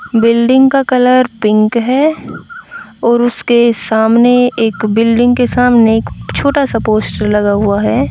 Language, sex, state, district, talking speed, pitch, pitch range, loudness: Hindi, female, Haryana, Rohtak, 140 wpm, 235 Hz, 220-250 Hz, -11 LUFS